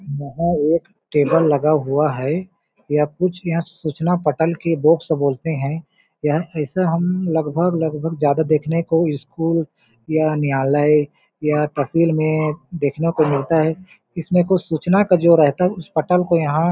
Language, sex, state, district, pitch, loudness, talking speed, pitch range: Hindi, male, Chhattisgarh, Balrampur, 160 Hz, -19 LUFS, 160 wpm, 150-170 Hz